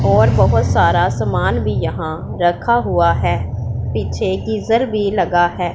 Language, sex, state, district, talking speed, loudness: Hindi, female, Punjab, Pathankot, 145 wpm, -16 LUFS